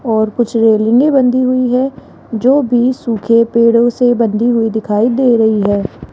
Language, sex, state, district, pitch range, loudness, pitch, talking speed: Hindi, female, Rajasthan, Jaipur, 225-250 Hz, -12 LUFS, 235 Hz, 175 wpm